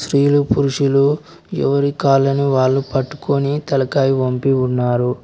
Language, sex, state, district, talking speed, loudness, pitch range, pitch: Telugu, male, Telangana, Mahabubabad, 105 wpm, -17 LUFS, 130-140 Hz, 135 Hz